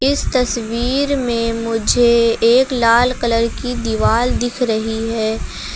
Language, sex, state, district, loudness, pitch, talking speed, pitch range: Hindi, female, Uttar Pradesh, Lucknow, -16 LUFS, 235 Hz, 125 wpm, 230-250 Hz